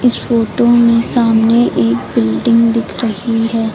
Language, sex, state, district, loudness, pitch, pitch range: Hindi, female, Uttar Pradesh, Lucknow, -13 LUFS, 230 Hz, 220-235 Hz